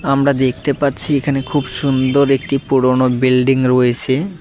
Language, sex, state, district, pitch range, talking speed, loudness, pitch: Bengali, male, West Bengal, Cooch Behar, 130-140 Hz, 135 wpm, -15 LUFS, 135 Hz